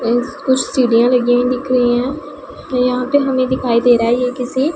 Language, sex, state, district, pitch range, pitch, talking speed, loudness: Hindi, female, Punjab, Pathankot, 245-260 Hz, 250 Hz, 215 wpm, -15 LUFS